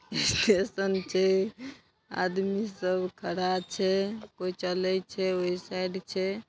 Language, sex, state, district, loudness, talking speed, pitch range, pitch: Maithili, female, Bihar, Darbhanga, -29 LUFS, 90 wpm, 185-195 Hz, 190 Hz